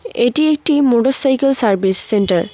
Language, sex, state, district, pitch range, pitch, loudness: Bengali, female, West Bengal, Cooch Behar, 205-285 Hz, 260 Hz, -13 LUFS